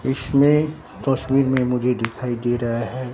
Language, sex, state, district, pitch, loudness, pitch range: Hindi, male, Bihar, Katihar, 130 Hz, -21 LUFS, 120-135 Hz